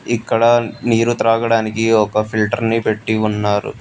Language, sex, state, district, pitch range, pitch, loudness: Telugu, male, Telangana, Hyderabad, 110-115 Hz, 115 Hz, -16 LUFS